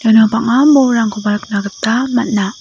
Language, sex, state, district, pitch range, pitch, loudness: Garo, female, Meghalaya, South Garo Hills, 210-245 Hz, 225 Hz, -13 LUFS